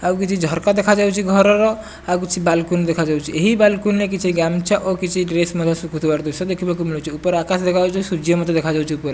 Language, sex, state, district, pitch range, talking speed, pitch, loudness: Odia, male, Odisha, Nuapada, 165-195 Hz, 190 wpm, 180 Hz, -18 LUFS